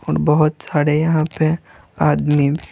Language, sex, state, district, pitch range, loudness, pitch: Hindi, male, Bihar, Patna, 145-155 Hz, -17 LUFS, 150 Hz